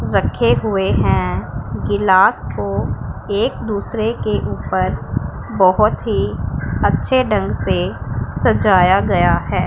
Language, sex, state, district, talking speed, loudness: Hindi, female, Punjab, Pathankot, 105 wpm, -17 LUFS